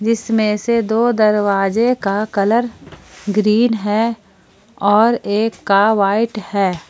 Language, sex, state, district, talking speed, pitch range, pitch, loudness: Hindi, female, Jharkhand, Palamu, 115 wpm, 200-225 Hz, 215 Hz, -16 LUFS